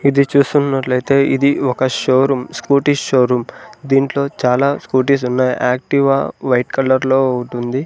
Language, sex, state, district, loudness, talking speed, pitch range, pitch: Telugu, male, Andhra Pradesh, Sri Satya Sai, -15 LUFS, 145 wpm, 125-140 Hz, 135 Hz